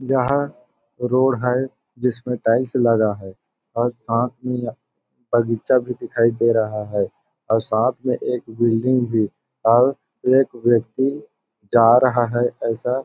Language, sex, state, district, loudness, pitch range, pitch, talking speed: Hindi, male, Chhattisgarh, Balrampur, -20 LUFS, 115-125 Hz, 120 Hz, 140 wpm